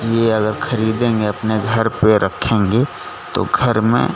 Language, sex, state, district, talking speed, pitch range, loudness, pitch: Hindi, male, Gujarat, Gandhinagar, 145 wpm, 110-120 Hz, -17 LUFS, 115 Hz